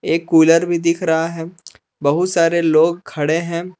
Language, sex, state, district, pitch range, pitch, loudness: Hindi, male, Jharkhand, Palamu, 160-170 Hz, 165 Hz, -16 LUFS